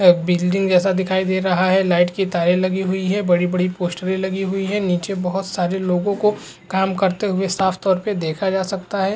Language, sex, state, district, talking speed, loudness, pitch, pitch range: Hindi, male, Uttar Pradesh, Hamirpur, 215 wpm, -19 LUFS, 190 Hz, 180-195 Hz